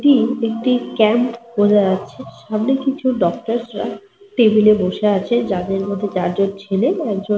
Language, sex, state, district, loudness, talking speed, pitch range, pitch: Bengali, female, Jharkhand, Sahebganj, -18 LUFS, 170 wpm, 200-240 Hz, 215 Hz